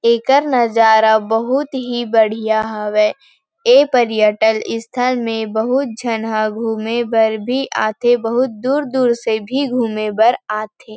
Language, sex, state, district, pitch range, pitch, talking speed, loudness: Chhattisgarhi, female, Chhattisgarh, Rajnandgaon, 220-255 Hz, 230 Hz, 140 wpm, -16 LUFS